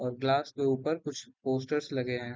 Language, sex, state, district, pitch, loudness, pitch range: Hindi, male, Uttar Pradesh, Varanasi, 135 Hz, -32 LUFS, 125-145 Hz